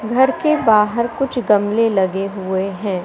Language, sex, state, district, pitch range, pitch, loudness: Hindi, female, Madhya Pradesh, Katni, 195-245 Hz, 210 Hz, -17 LUFS